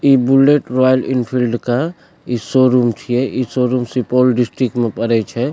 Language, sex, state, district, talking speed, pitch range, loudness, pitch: Maithili, male, Bihar, Supaul, 160 wpm, 120-130 Hz, -15 LUFS, 125 Hz